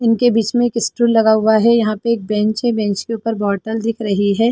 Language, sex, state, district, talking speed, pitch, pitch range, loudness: Hindi, female, Chhattisgarh, Bilaspur, 280 wpm, 225 Hz, 215-230 Hz, -16 LUFS